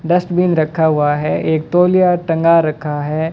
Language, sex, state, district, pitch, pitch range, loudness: Hindi, male, Rajasthan, Bikaner, 160 Hz, 155-175 Hz, -15 LUFS